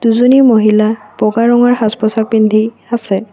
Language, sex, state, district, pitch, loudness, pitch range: Assamese, female, Assam, Kamrup Metropolitan, 220 Hz, -11 LUFS, 215-235 Hz